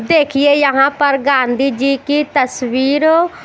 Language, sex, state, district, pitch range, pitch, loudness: Hindi, female, Chandigarh, Chandigarh, 270-295 Hz, 275 Hz, -13 LUFS